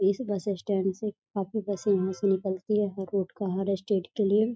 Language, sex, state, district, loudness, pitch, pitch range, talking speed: Hindi, female, Bihar, East Champaran, -29 LUFS, 200 Hz, 190-205 Hz, 235 wpm